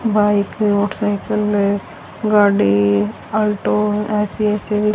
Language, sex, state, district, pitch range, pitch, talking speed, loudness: Hindi, female, Haryana, Rohtak, 200-210 Hz, 210 Hz, 110 wpm, -17 LUFS